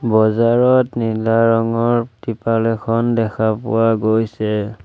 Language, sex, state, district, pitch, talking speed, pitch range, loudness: Assamese, male, Assam, Sonitpur, 115 Hz, 100 wpm, 110-115 Hz, -17 LUFS